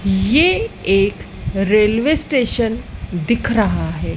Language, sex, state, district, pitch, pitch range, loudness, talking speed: Hindi, female, Madhya Pradesh, Dhar, 210 Hz, 195-250 Hz, -17 LUFS, 100 wpm